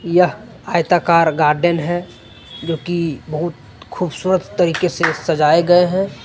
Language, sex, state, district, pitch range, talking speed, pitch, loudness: Hindi, male, Jharkhand, Deoghar, 155-175 Hz, 125 wpm, 170 Hz, -17 LUFS